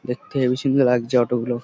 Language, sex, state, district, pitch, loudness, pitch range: Bengali, male, West Bengal, Kolkata, 125 Hz, -20 LUFS, 120-130 Hz